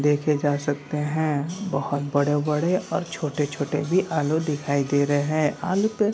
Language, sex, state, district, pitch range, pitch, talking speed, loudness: Hindi, male, Bihar, Kishanganj, 145-160 Hz, 150 Hz, 165 wpm, -24 LUFS